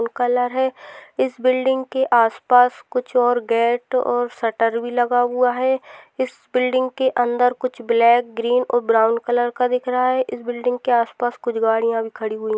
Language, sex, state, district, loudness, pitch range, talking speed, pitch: Hindi, female, Rajasthan, Nagaur, -19 LUFS, 235-255 Hz, 200 wpm, 245 Hz